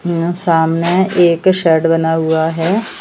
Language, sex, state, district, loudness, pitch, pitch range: Hindi, female, Madhya Pradesh, Bhopal, -13 LUFS, 170 Hz, 160-180 Hz